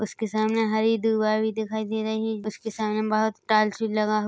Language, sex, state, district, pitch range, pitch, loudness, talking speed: Hindi, female, Chhattisgarh, Bilaspur, 215-220 Hz, 220 Hz, -25 LUFS, 210 wpm